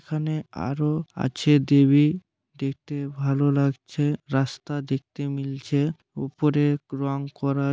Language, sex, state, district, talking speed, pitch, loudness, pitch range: Bengali, male, West Bengal, Dakshin Dinajpur, 100 wpm, 140 Hz, -24 LUFS, 140-150 Hz